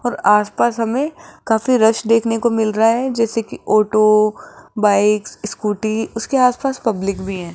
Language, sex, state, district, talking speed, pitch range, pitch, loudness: Hindi, female, Rajasthan, Jaipur, 175 wpm, 210-235 Hz, 225 Hz, -17 LUFS